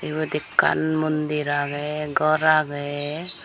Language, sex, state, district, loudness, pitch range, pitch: Chakma, female, Tripura, Dhalai, -22 LUFS, 145-155 Hz, 150 Hz